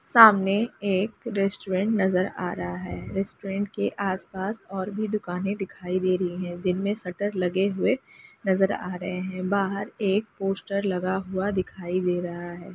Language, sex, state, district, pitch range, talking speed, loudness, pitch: Hindi, female, Bihar, Jamui, 180-200 Hz, 160 wpm, -26 LUFS, 190 Hz